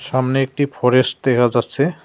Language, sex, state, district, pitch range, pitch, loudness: Bengali, male, West Bengal, Cooch Behar, 125-140 Hz, 130 Hz, -17 LUFS